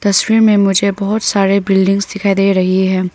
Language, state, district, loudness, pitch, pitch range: Hindi, Arunachal Pradesh, Papum Pare, -13 LUFS, 195 Hz, 195-200 Hz